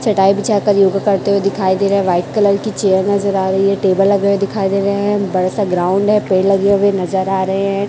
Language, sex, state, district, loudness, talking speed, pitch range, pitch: Hindi, female, Chhattisgarh, Raipur, -14 LUFS, 265 wpm, 190-200 Hz, 195 Hz